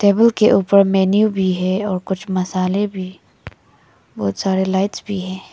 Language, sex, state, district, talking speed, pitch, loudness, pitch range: Hindi, female, Arunachal Pradesh, Lower Dibang Valley, 165 wpm, 190 Hz, -17 LUFS, 185-200 Hz